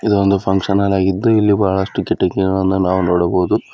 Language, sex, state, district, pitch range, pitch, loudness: Kannada, male, Karnataka, Bidar, 95-100 Hz, 95 Hz, -16 LUFS